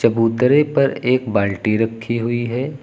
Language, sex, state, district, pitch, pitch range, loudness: Hindi, male, Uttar Pradesh, Lucknow, 120 Hz, 115-130 Hz, -18 LUFS